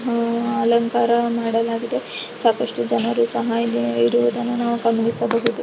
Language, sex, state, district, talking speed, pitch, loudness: Kannada, female, Karnataka, Raichur, 105 wpm, 230 Hz, -20 LUFS